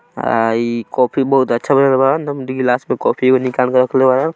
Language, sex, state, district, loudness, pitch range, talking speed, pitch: Hindi, male, Bihar, Gopalganj, -15 LUFS, 125-135 Hz, 150 wpm, 130 Hz